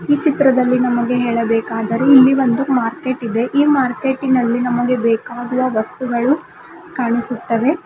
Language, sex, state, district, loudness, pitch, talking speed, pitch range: Kannada, female, Karnataka, Bidar, -16 LUFS, 250 Hz, 105 wpm, 235-270 Hz